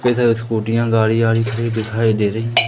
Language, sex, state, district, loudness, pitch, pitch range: Hindi, male, Madhya Pradesh, Umaria, -17 LUFS, 115 Hz, 110-115 Hz